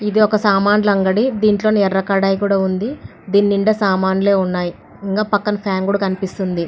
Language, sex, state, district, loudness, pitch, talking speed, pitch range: Telugu, female, Andhra Pradesh, Anantapur, -16 LUFS, 200 Hz, 155 wpm, 190-210 Hz